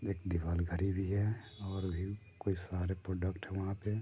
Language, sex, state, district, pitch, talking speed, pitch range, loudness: Hindi, male, Bihar, Sitamarhi, 95 Hz, 195 wpm, 90-100 Hz, -38 LUFS